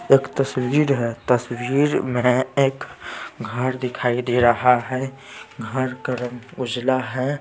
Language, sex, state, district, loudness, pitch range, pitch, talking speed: Hindi, male, Bihar, Patna, -21 LUFS, 125-135 Hz, 125 Hz, 135 wpm